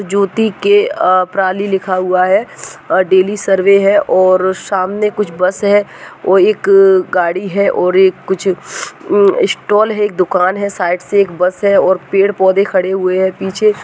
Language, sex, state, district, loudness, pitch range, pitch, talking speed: Hindi, male, Rajasthan, Nagaur, -12 LUFS, 185-205 Hz, 195 Hz, 165 wpm